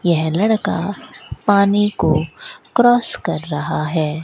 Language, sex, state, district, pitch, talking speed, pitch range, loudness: Hindi, female, Rajasthan, Bikaner, 200 Hz, 115 wpm, 160-220 Hz, -17 LUFS